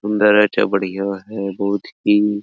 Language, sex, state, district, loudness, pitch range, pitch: Hindi, male, Bihar, Araria, -18 LUFS, 100-105 Hz, 100 Hz